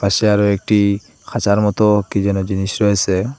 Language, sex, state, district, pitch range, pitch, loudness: Bengali, male, Assam, Hailakandi, 100-105 Hz, 100 Hz, -16 LUFS